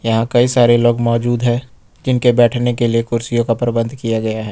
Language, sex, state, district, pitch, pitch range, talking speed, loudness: Hindi, male, Jharkhand, Ranchi, 120 Hz, 115-120 Hz, 210 wpm, -15 LUFS